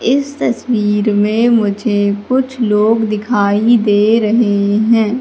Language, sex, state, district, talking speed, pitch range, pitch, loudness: Hindi, female, Madhya Pradesh, Katni, 115 wpm, 205-235 Hz, 215 Hz, -13 LUFS